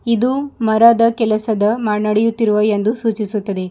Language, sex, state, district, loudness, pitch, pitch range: Kannada, female, Karnataka, Bidar, -16 LUFS, 220 Hz, 210-230 Hz